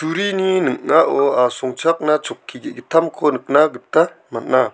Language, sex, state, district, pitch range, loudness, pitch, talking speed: Garo, male, Meghalaya, South Garo Hills, 135-165 Hz, -17 LUFS, 155 Hz, 90 wpm